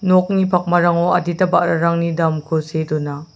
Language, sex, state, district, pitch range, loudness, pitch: Garo, male, Meghalaya, South Garo Hills, 160-180 Hz, -17 LUFS, 170 Hz